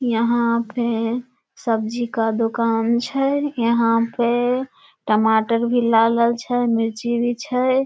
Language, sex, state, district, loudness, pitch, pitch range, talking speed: Maithili, female, Bihar, Samastipur, -20 LUFS, 235 Hz, 230-245 Hz, 115 wpm